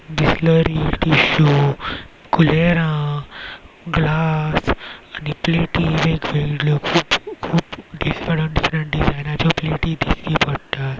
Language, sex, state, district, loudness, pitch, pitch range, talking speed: Konkani, male, Goa, North and South Goa, -18 LUFS, 155 Hz, 150-165 Hz, 60 wpm